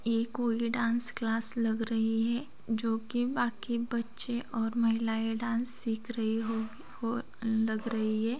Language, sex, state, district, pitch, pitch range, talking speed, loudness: Hindi, female, Bihar, Gopalganj, 230 Hz, 225-240 Hz, 150 wpm, -32 LUFS